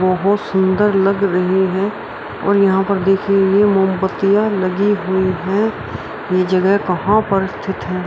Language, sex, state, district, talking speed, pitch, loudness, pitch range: Hindi, female, Bihar, Araria, 150 wpm, 195 Hz, -16 LUFS, 190-200 Hz